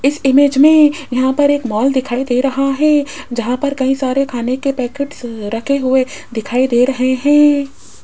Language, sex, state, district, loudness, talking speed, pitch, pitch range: Hindi, female, Rajasthan, Jaipur, -14 LUFS, 180 wpm, 270 Hz, 250-285 Hz